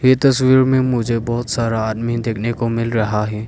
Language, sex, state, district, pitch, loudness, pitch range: Hindi, male, Arunachal Pradesh, Lower Dibang Valley, 115 Hz, -17 LUFS, 115-130 Hz